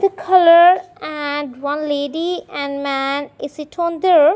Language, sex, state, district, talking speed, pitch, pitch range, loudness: English, female, Punjab, Kapurthala, 150 wpm, 300 Hz, 285-350 Hz, -16 LUFS